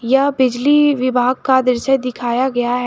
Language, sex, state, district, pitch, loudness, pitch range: Hindi, female, Jharkhand, Garhwa, 255 Hz, -15 LUFS, 245-270 Hz